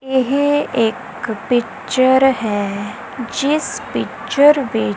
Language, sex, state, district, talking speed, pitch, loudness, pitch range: Punjabi, female, Punjab, Kapurthala, 85 wpm, 255 Hz, -17 LUFS, 220-280 Hz